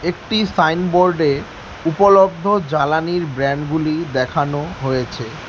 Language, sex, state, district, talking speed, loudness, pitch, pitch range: Bengali, male, West Bengal, Alipurduar, 65 wpm, -17 LUFS, 160 Hz, 145-180 Hz